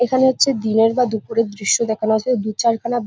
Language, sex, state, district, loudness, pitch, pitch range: Bengali, female, West Bengal, Jhargram, -18 LUFS, 230 Hz, 220-245 Hz